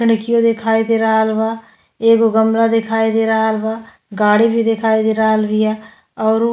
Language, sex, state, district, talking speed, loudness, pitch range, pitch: Bhojpuri, female, Uttar Pradesh, Deoria, 195 wpm, -15 LUFS, 220-225 Hz, 225 Hz